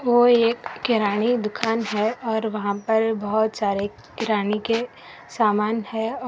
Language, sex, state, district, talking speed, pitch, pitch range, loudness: Hindi, female, Karnataka, Koppal, 155 wpm, 220 Hz, 210-230 Hz, -22 LUFS